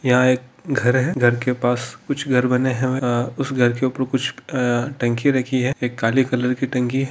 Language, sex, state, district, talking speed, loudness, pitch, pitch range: Hindi, male, Andhra Pradesh, Chittoor, 220 wpm, -20 LUFS, 125 Hz, 125-130 Hz